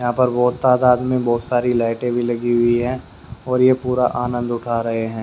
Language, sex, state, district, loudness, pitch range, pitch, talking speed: Hindi, male, Haryana, Rohtak, -18 LUFS, 120-125 Hz, 120 Hz, 220 wpm